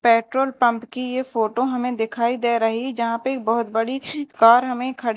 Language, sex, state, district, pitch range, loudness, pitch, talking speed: Hindi, female, Madhya Pradesh, Dhar, 230-255 Hz, -21 LUFS, 240 Hz, 195 wpm